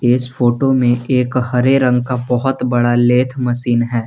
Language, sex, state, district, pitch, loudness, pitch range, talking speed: Hindi, male, Jharkhand, Garhwa, 125 Hz, -15 LUFS, 120-125 Hz, 175 wpm